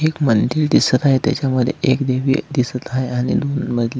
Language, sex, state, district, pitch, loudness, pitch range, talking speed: Marathi, male, Maharashtra, Solapur, 130 Hz, -18 LUFS, 125-145 Hz, 180 wpm